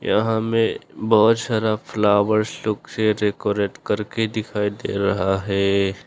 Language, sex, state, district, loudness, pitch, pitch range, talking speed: Hindi, male, Arunachal Pradesh, Longding, -21 LUFS, 105 Hz, 100-110 Hz, 130 wpm